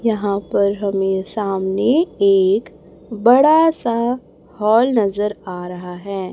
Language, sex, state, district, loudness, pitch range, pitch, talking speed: Hindi, female, Chhattisgarh, Raipur, -17 LUFS, 195-235 Hz, 205 Hz, 115 wpm